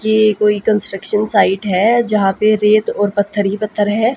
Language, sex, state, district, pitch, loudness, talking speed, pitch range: Hindi, female, Haryana, Jhajjar, 210 Hz, -15 LUFS, 185 wpm, 205-215 Hz